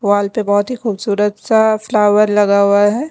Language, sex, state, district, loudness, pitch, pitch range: Hindi, female, Delhi, New Delhi, -14 LUFS, 210 Hz, 205-220 Hz